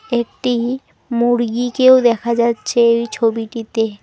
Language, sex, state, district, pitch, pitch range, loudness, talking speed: Bengali, female, West Bengal, Alipurduar, 235 Hz, 230-245 Hz, -16 LUFS, 90 wpm